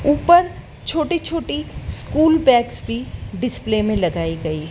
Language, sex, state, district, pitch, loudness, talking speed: Hindi, female, Madhya Pradesh, Dhar, 220 Hz, -19 LUFS, 125 wpm